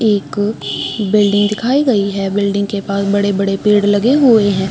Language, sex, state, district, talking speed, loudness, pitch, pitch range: Hindi, female, Chhattisgarh, Rajnandgaon, 180 wpm, -14 LUFS, 205 Hz, 200-210 Hz